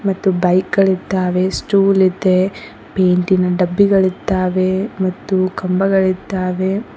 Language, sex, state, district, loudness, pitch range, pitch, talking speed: Kannada, female, Karnataka, Koppal, -16 LUFS, 185-195 Hz, 190 Hz, 85 wpm